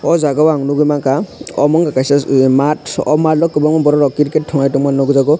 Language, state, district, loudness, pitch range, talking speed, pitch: Kokborok, Tripura, Dhalai, -13 LUFS, 140-155 Hz, 235 wpm, 150 Hz